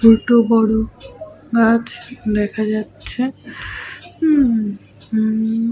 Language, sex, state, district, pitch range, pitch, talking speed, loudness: Bengali, female, Jharkhand, Sahebganj, 220-245 Hz, 225 Hz, 85 wpm, -17 LUFS